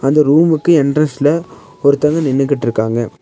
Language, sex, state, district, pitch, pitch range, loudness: Tamil, male, Tamil Nadu, Nilgiris, 140 Hz, 135-155 Hz, -14 LUFS